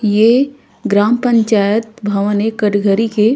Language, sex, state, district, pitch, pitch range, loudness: Chhattisgarhi, female, Chhattisgarh, Korba, 215 Hz, 205-230 Hz, -14 LUFS